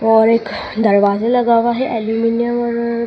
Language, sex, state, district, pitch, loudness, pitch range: Hindi, female, Madhya Pradesh, Dhar, 230 Hz, -15 LUFS, 225-235 Hz